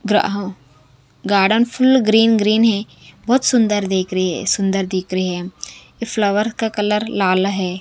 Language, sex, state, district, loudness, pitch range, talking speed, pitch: Hindi, female, Punjab, Kapurthala, -17 LUFS, 185-220 Hz, 160 wpm, 200 Hz